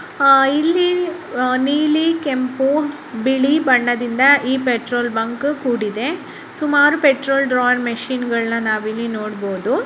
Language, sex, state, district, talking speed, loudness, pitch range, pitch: Kannada, female, Karnataka, Raichur, 105 wpm, -17 LUFS, 240-295 Hz, 265 Hz